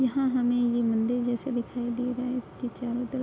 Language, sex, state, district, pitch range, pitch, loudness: Hindi, female, Uttar Pradesh, Budaun, 240-250 Hz, 245 Hz, -28 LUFS